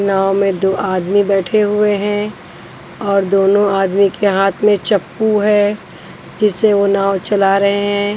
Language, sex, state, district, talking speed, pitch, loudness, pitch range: Hindi, female, Punjab, Pathankot, 155 wpm, 200 Hz, -14 LUFS, 195-205 Hz